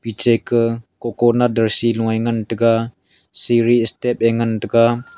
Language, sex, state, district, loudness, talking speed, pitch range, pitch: Wancho, male, Arunachal Pradesh, Longding, -17 LUFS, 140 wpm, 115-120 Hz, 115 Hz